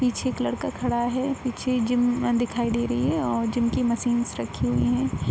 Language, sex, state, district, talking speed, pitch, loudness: Hindi, female, Bihar, Araria, 205 wpm, 240 Hz, -25 LUFS